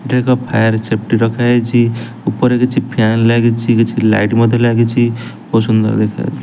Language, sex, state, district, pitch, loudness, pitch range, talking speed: Odia, male, Odisha, Nuapada, 115 Hz, -13 LUFS, 115-120 Hz, 170 wpm